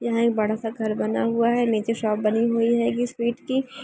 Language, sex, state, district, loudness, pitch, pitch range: Hindi, female, Andhra Pradesh, Chittoor, -23 LUFS, 230 Hz, 215-235 Hz